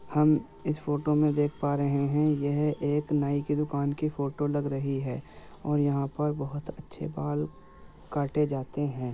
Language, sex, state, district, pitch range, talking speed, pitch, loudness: Hindi, male, Uttar Pradesh, Muzaffarnagar, 140-150 Hz, 185 wpm, 145 Hz, -29 LUFS